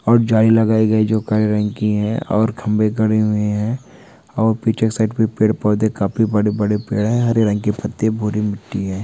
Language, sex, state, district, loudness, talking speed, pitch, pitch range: Hindi, male, West Bengal, Jalpaiguri, -17 LUFS, 205 wpm, 110 Hz, 105-110 Hz